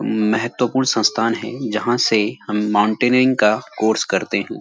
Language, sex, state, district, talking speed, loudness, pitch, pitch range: Hindi, male, Uttarakhand, Uttarkashi, 145 wpm, -18 LUFS, 110 Hz, 105-125 Hz